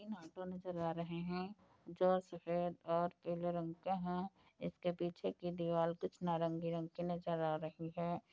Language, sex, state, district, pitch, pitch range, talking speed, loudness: Hindi, female, Uttar Pradesh, Budaun, 175 Hz, 170-180 Hz, 180 wpm, -41 LUFS